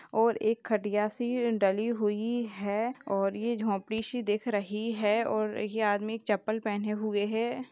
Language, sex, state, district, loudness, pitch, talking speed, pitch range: Hindi, female, Uttar Pradesh, Jalaun, -30 LUFS, 215 Hz, 165 wpm, 210-230 Hz